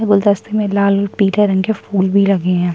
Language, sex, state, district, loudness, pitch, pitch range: Hindi, female, Chhattisgarh, Kabirdham, -15 LUFS, 200 Hz, 195-205 Hz